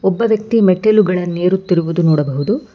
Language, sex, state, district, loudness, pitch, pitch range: Kannada, female, Karnataka, Bangalore, -14 LUFS, 185 Hz, 175-215 Hz